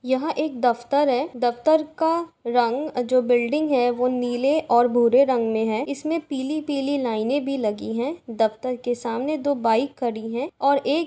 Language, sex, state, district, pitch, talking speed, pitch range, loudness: Hindi, female, Uttar Pradesh, Jalaun, 255 Hz, 175 wpm, 240-290 Hz, -22 LUFS